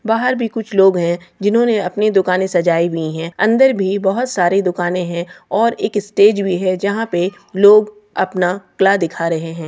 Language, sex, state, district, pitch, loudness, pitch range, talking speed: Hindi, female, Chhattisgarh, Kabirdham, 195 Hz, -16 LUFS, 175-210 Hz, 180 wpm